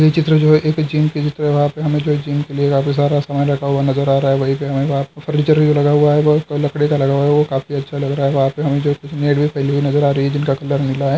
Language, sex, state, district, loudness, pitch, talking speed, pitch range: Hindi, male, Bihar, Purnia, -16 LUFS, 145 Hz, 265 wpm, 140-150 Hz